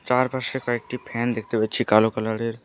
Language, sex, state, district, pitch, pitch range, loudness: Bengali, female, West Bengal, Alipurduar, 120 Hz, 110-125 Hz, -23 LUFS